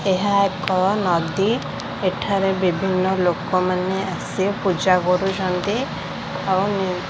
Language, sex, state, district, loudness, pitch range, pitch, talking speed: Odia, female, Odisha, Khordha, -21 LUFS, 185-195 Hz, 190 Hz, 95 wpm